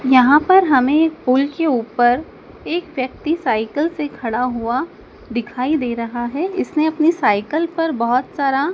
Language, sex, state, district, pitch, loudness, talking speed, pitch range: Hindi, female, Madhya Pradesh, Dhar, 275 Hz, -18 LUFS, 160 wpm, 245-315 Hz